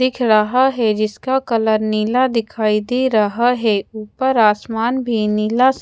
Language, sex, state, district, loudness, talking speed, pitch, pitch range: Hindi, female, Odisha, Khordha, -17 LUFS, 155 wpm, 225 Hz, 215-250 Hz